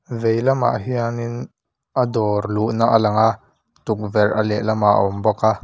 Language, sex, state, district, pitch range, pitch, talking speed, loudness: Mizo, male, Mizoram, Aizawl, 105-115 Hz, 110 Hz, 180 wpm, -19 LUFS